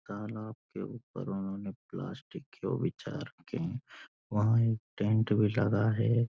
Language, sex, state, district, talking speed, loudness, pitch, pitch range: Hindi, male, Uttarakhand, Uttarkashi, 155 wpm, -33 LUFS, 105 Hz, 100-110 Hz